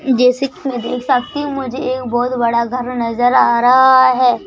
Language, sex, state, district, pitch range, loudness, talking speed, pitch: Hindi, male, Madhya Pradesh, Bhopal, 245-260 Hz, -14 LUFS, 200 wpm, 250 Hz